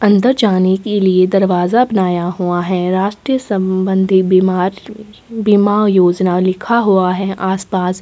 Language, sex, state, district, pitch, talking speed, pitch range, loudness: Hindi, female, Chhattisgarh, Sukma, 190 Hz, 140 wpm, 185-210 Hz, -14 LUFS